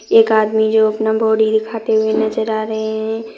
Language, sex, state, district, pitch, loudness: Hindi, female, Jharkhand, Deoghar, 220 Hz, -16 LUFS